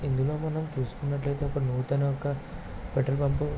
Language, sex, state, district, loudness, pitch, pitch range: Telugu, male, Andhra Pradesh, Krishna, -30 LUFS, 140 Hz, 135-145 Hz